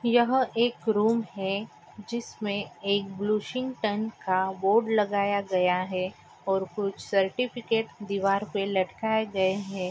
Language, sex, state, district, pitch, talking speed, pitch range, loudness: Hindi, female, Maharashtra, Nagpur, 205 Hz, 120 wpm, 195-225 Hz, -27 LUFS